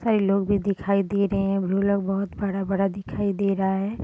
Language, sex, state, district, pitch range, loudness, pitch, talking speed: Hindi, female, Bihar, Sitamarhi, 195-200 Hz, -24 LUFS, 195 Hz, 195 wpm